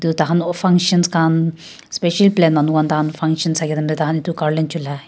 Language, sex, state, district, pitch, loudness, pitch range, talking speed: Nagamese, female, Nagaland, Kohima, 160 Hz, -17 LUFS, 155-170 Hz, 190 wpm